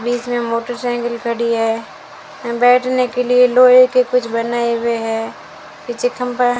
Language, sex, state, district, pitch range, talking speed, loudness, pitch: Hindi, female, Rajasthan, Bikaner, 235-250 Hz, 155 wpm, -16 LUFS, 240 Hz